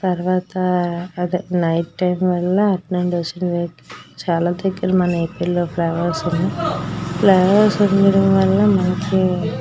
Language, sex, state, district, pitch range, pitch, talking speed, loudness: Telugu, female, Andhra Pradesh, Srikakulam, 175-190 Hz, 180 Hz, 130 wpm, -18 LUFS